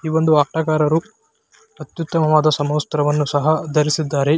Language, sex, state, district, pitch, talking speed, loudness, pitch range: Kannada, male, Karnataka, Belgaum, 155 Hz, 95 wpm, -18 LUFS, 150-160 Hz